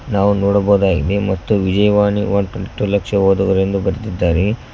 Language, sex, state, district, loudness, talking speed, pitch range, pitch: Kannada, male, Karnataka, Koppal, -16 LUFS, 115 wpm, 95-100 Hz, 100 Hz